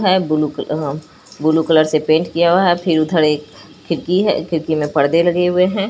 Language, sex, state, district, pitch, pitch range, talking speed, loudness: Hindi, female, Bihar, Katihar, 160 Hz, 155-180 Hz, 215 wpm, -16 LUFS